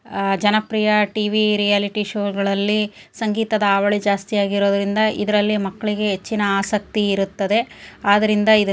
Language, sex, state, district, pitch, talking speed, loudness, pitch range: Kannada, female, Karnataka, Shimoga, 205 Hz, 125 wpm, -19 LUFS, 200-215 Hz